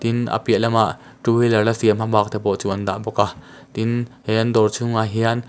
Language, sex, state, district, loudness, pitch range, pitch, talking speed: Mizo, male, Mizoram, Aizawl, -20 LUFS, 105-115 Hz, 110 Hz, 250 wpm